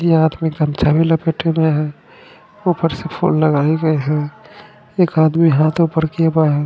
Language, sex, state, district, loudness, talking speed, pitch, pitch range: Hindi, male, Punjab, Fazilka, -16 LUFS, 145 wpm, 160 Hz, 155-170 Hz